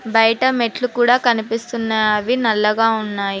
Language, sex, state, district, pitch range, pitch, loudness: Telugu, female, Telangana, Mahabubabad, 215-240 Hz, 225 Hz, -17 LUFS